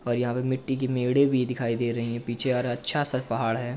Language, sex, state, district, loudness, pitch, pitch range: Hindi, male, Uttar Pradesh, Jalaun, -26 LUFS, 125 Hz, 120-130 Hz